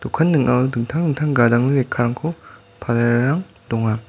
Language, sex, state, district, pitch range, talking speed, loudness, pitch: Garo, male, Meghalaya, West Garo Hills, 120-145 Hz, 105 wpm, -19 LUFS, 125 Hz